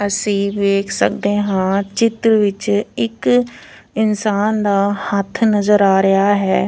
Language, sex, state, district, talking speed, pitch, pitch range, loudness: Punjabi, female, Punjab, Fazilka, 125 wpm, 205 Hz, 200-215 Hz, -16 LUFS